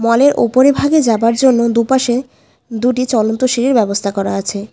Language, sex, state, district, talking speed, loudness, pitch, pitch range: Bengali, female, West Bengal, Alipurduar, 150 wpm, -13 LUFS, 235 Hz, 220-260 Hz